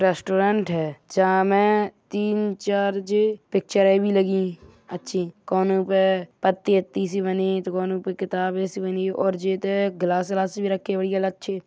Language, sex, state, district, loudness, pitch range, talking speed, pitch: Bundeli, female, Uttar Pradesh, Hamirpur, -23 LUFS, 185-200 Hz, 185 wpm, 190 Hz